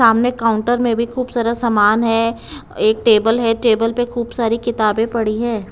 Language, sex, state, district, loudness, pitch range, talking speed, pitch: Hindi, female, Punjab, Kapurthala, -16 LUFS, 225-235 Hz, 190 wpm, 230 Hz